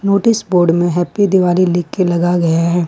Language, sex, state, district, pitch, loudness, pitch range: Hindi, female, Jharkhand, Ranchi, 175 Hz, -14 LUFS, 175-190 Hz